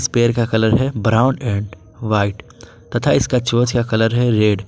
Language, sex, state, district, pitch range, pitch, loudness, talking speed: Hindi, male, Jharkhand, Ranchi, 105-120 Hz, 115 Hz, -17 LUFS, 190 wpm